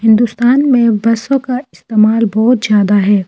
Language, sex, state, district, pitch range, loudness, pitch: Hindi, female, Delhi, New Delhi, 215-245 Hz, -12 LUFS, 230 Hz